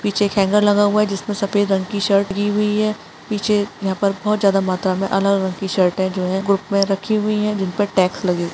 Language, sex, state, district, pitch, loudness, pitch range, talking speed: Hindi, female, Chhattisgarh, Sarguja, 200 Hz, -18 LUFS, 195-205 Hz, 255 wpm